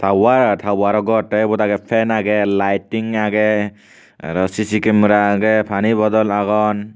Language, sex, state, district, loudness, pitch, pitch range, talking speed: Chakma, male, Tripura, Unakoti, -16 LUFS, 105 Hz, 100-110 Hz, 145 wpm